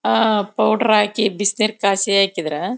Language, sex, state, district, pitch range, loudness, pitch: Kannada, female, Karnataka, Bellary, 195-215 Hz, -17 LUFS, 205 Hz